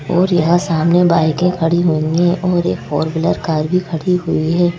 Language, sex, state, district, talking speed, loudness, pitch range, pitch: Hindi, female, Madhya Pradesh, Bhopal, 200 wpm, -15 LUFS, 160-175 Hz, 170 Hz